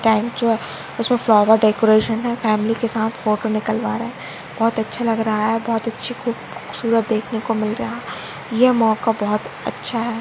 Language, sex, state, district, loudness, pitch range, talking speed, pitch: Hindi, female, Goa, North and South Goa, -19 LUFS, 220-230 Hz, 170 wpm, 225 Hz